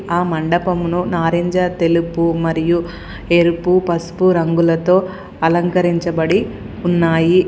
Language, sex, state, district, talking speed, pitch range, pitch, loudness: Telugu, female, Telangana, Komaram Bheem, 80 wpm, 165-180 Hz, 170 Hz, -16 LUFS